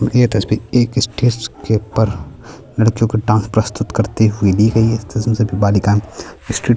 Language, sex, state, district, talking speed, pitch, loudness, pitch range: Hindi, male, Chhattisgarh, Kabirdham, 195 wpm, 110 Hz, -16 LUFS, 105-115 Hz